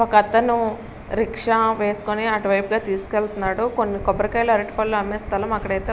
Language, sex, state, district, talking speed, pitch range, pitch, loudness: Telugu, female, Andhra Pradesh, Srikakulam, 120 wpm, 205-225 Hz, 215 Hz, -21 LUFS